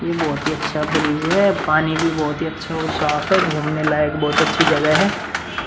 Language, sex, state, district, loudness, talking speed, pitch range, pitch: Hindi, male, Bihar, Vaishali, -18 LUFS, 210 wpm, 150-165 Hz, 155 Hz